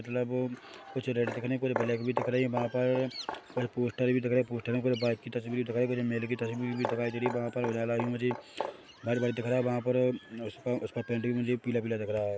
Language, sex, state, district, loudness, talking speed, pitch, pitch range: Hindi, male, Chhattisgarh, Bilaspur, -32 LUFS, 280 wpm, 120 Hz, 120-125 Hz